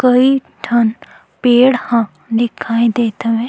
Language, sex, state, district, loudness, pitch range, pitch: Chhattisgarhi, female, Chhattisgarh, Sukma, -15 LUFS, 230-250 Hz, 235 Hz